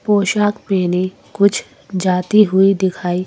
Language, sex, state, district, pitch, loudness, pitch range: Hindi, female, Madhya Pradesh, Bhopal, 190 Hz, -16 LUFS, 185-205 Hz